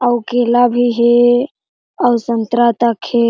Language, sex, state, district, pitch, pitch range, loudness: Chhattisgarhi, female, Chhattisgarh, Jashpur, 240 Hz, 235-245 Hz, -13 LUFS